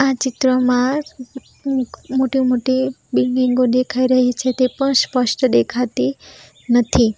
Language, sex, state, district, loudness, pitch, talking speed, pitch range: Gujarati, female, Gujarat, Valsad, -17 LUFS, 255 Hz, 110 wpm, 250-265 Hz